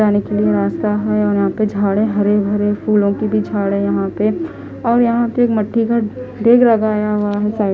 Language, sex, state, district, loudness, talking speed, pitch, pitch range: Hindi, female, Odisha, Khordha, -16 LUFS, 225 wpm, 210 Hz, 205-220 Hz